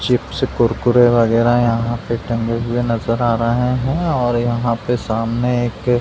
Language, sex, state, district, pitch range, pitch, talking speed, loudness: Hindi, male, Uttar Pradesh, Deoria, 115-125 Hz, 120 Hz, 170 wpm, -17 LUFS